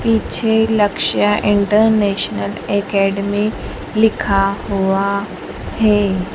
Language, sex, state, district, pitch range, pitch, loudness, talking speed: Hindi, female, Madhya Pradesh, Dhar, 195-215 Hz, 200 Hz, -16 LUFS, 65 wpm